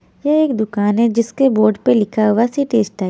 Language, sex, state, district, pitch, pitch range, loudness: Hindi, female, Haryana, Jhajjar, 230 Hz, 215-255 Hz, -16 LUFS